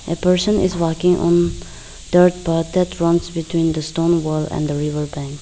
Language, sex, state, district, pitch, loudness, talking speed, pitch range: English, female, Arunachal Pradesh, Lower Dibang Valley, 170 Hz, -18 LUFS, 190 wpm, 155-180 Hz